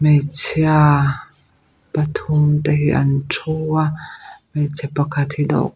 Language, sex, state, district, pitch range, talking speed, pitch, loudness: Mizo, female, Mizoram, Aizawl, 145-155 Hz, 115 wpm, 150 Hz, -17 LUFS